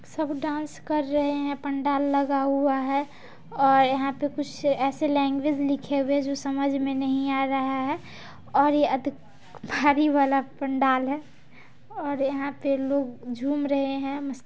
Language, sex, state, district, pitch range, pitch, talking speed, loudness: Maithili, female, Bihar, Samastipur, 275-285 Hz, 280 Hz, 170 wpm, -25 LUFS